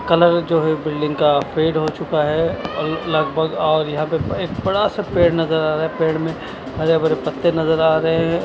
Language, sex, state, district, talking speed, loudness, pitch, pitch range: Hindi, male, Chandigarh, Chandigarh, 215 wpm, -18 LUFS, 160 Hz, 155-165 Hz